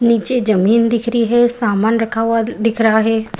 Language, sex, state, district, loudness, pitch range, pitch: Hindi, female, Bihar, Saharsa, -15 LUFS, 220-235 Hz, 230 Hz